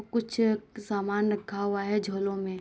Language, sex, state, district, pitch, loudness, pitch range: Hindi, female, Uttar Pradesh, Jyotiba Phule Nagar, 205 Hz, -29 LUFS, 200-215 Hz